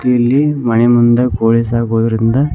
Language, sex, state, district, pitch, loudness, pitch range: Kannada, male, Karnataka, Koppal, 120 Hz, -12 LUFS, 115-125 Hz